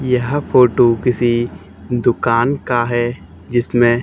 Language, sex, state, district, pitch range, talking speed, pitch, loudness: Hindi, male, Haryana, Charkhi Dadri, 120-125 Hz, 105 wpm, 120 Hz, -16 LUFS